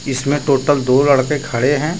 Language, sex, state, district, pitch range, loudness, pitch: Hindi, male, Jharkhand, Deoghar, 135-145 Hz, -15 LUFS, 140 Hz